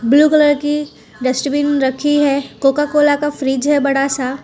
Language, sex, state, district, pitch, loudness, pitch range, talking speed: Hindi, female, Gujarat, Valsad, 285 Hz, -15 LUFS, 270-295 Hz, 160 wpm